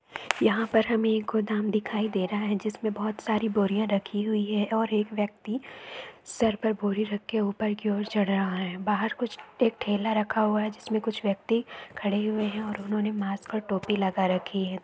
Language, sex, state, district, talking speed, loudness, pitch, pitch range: Hindi, female, Uttar Pradesh, Etah, 205 wpm, -28 LUFS, 210 Hz, 205-220 Hz